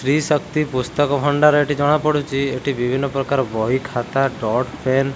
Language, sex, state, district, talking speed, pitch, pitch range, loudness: Odia, male, Odisha, Khordha, 165 wpm, 140 Hz, 130-145 Hz, -19 LUFS